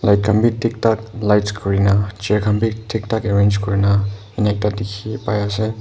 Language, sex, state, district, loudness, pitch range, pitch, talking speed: Nagamese, male, Nagaland, Kohima, -18 LUFS, 100-110 Hz, 105 Hz, 185 wpm